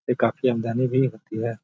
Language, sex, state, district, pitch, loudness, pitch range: Hindi, male, Bihar, Gaya, 115 Hz, -24 LUFS, 115-130 Hz